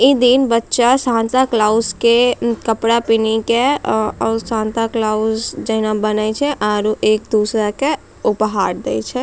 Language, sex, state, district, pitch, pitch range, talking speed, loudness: Angika, female, Bihar, Bhagalpur, 225 Hz, 215-240 Hz, 145 wpm, -16 LUFS